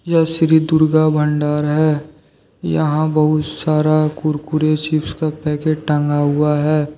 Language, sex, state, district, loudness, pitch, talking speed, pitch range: Hindi, male, Jharkhand, Deoghar, -16 LUFS, 155 Hz, 130 wpm, 150-155 Hz